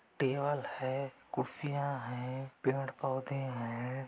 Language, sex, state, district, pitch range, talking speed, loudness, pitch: Hindi, male, Chhattisgarh, Raigarh, 130-140 Hz, 90 wpm, -37 LUFS, 135 Hz